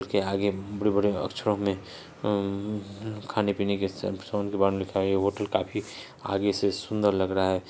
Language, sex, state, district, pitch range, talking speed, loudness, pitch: Hindi, male, Bihar, Saharsa, 95-105 Hz, 150 wpm, -28 LUFS, 100 Hz